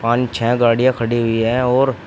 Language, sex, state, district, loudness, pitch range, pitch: Hindi, male, Uttar Pradesh, Shamli, -16 LUFS, 115-125 Hz, 120 Hz